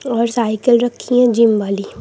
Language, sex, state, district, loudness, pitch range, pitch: Hindi, female, Uttar Pradesh, Lucknow, -15 LUFS, 215-245 Hz, 235 Hz